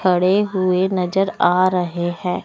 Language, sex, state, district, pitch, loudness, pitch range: Hindi, male, Chandigarh, Chandigarh, 185 Hz, -18 LUFS, 180-190 Hz